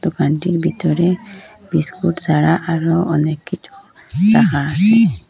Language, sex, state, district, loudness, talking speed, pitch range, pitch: Bengali, female, Assam, Hailakandi, -16 LUFS, 100 wpm, 160-200 Hz, 170 Hz